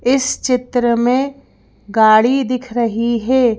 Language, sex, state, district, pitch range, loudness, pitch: Hindi, female, Madhya Pradesh, Bhopal, 230-255 Hz, -15 LUFS, 245 Hz